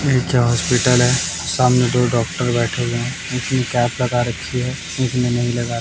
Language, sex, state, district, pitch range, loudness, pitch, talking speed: Hindi, male, Bihar, West Champaran, 120-125 Hz, -18 LUFS, 125 Hz, 195 wpm